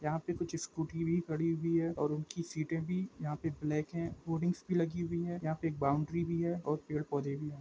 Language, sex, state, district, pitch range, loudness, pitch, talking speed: Hindi, male, Jharkhand, Jamtara, 150-170 Hz, -36 LUFS, 165 Hz, 245 wpm